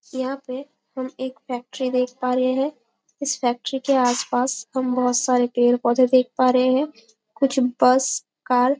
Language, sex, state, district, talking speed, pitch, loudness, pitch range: Hindi, female, Chhattisgarh, Bastar, 170 wpm, 255 Hz, -21 LUFS, 245-265 Hz